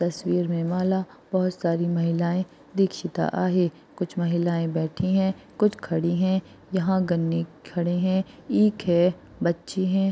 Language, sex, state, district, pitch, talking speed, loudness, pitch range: Hindi, female, Maharashtra, Aurangabad, 180 Hz, 130 wpm, -25 LUFS, 170-190 Hz